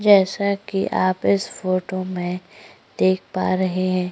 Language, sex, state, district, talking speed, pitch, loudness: Hindi, female, Uttar Pradesh, Jyotiba Phule Nagar, 145 wpm, 185 Hz, -21 LUFS